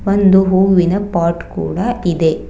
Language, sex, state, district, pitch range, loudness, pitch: Kannada, female, Karnataka, Bangalore, 170-195 Hz, -14 LUFS, 190 Hz